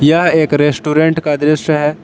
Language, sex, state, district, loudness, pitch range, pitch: Hindi, male, Jharkhand, Palamu, -13 LUFS, 150-160 Hz, 150 Hz